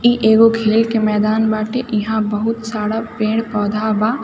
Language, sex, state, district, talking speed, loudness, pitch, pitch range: Hindi, female, Bihar, East Champaran, 155 wpm, -16 LUFS, 220 Hz, 215-225 Hz